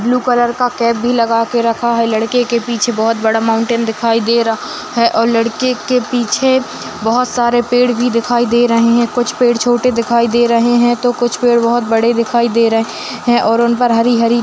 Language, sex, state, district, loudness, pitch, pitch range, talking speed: Hindi, female, Bihar, Madhepura, -13 LUFS, 235 Hz, 230-245 Hz, 215 wpm